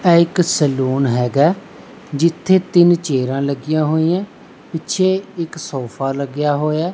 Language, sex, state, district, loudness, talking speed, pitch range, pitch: Punjabi, male, Punjab, Pathankot, -17 LUFS, 120 wpm, 140-175 Hz, 155 Hz